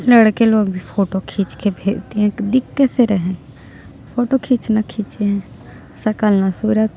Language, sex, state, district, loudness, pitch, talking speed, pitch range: Hindi, female, Chhattisgarh, Jashpur, -17 LUFS, 210 Hz, 155 wpm, 190-225 Hz